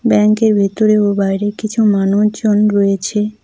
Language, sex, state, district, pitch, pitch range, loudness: Bengali, female, West Bengal, Cooch Behar, 210 Hz, 200-215 Hz, -14 LUFS